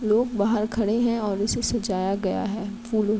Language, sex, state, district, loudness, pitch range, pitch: Hindi, female, Uttar Pradesh, Jalaun, -25 LUFS, 205-225 Hz, 215 Hz